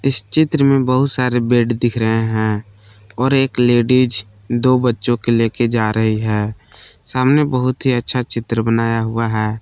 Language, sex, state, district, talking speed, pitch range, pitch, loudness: Hindi, male, Jharkhand, Palamu, 175 wpm, 110-130 Hz, 120 Hz, -16 LUFS